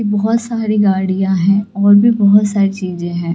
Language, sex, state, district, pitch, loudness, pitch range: Hindi, female, Bihar, Gaya, 200 Hz, -13 LUFS, 190-210 Hz